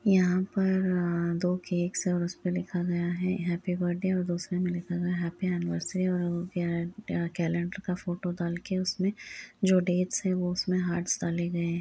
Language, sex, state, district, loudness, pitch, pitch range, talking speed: Hindi, female, Uttar Pradesh, Budaun, -29 LUFS, 180 Hz, 175-185 Hz, 190 wpm